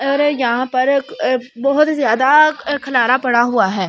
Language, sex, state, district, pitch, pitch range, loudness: Hindi, female, Delhi, New Delhi, 260 Hz, 245-285 Hz, -15 LUFS